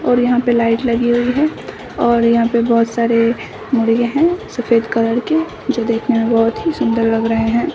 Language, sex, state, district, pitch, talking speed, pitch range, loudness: Hindi, female, Bihar, Samastipur, 235 Hz, 200 wpm, 230-245 Hz, -15 LUFS